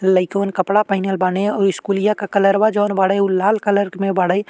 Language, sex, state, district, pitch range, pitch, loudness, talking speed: Bhojpuri, male, Uttar Pradesh, Deoria, 190-205 Hz, 195 Hz, -17 LUFS, 200 wpm